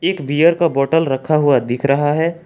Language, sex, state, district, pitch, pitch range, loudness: Hindi, male, Jharkhand, Ranchi, 150 Hz, 140-165 Hz, -16 LUFS